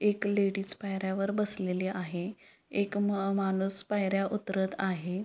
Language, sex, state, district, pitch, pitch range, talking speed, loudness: Marathi, female, Maharashtra, Pune, 195 Hz, 190-205 Hz, 115 wpm, -31 LUFS